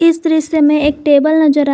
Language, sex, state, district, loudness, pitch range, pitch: Hindi, female, Jharkhand, Garhwa, -12 LUFS, 295-315 Hz, 300 Hz